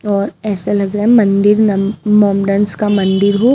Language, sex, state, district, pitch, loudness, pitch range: Hindi, female, Himachal Pradesh, Shimla, 205 Hz, -13 LUFS, 200-210 Hz